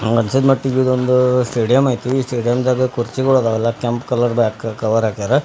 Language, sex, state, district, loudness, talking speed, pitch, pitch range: Kannada, male, Karnataka, Bijapur, -17 LUFS, 165 wpm, 125 Hz, 115-130 Hz